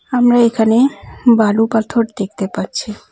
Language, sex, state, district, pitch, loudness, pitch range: Bengali, female, West Bengal, Cooch Behar, 225 Hz, -15 LUFS, 215-240 Hz